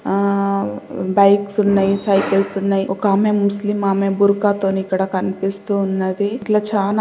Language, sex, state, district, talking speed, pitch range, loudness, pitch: Telugu, female, Telangana, Karimnagar, 135 wpm, 195-200 Hz, -18 LUFS, 200 Hz